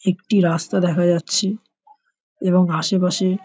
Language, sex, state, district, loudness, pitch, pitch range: Bengali, male, West Bengal, North 24 Parganas, -19 LUFS, 185 Hz, 175-195 Hz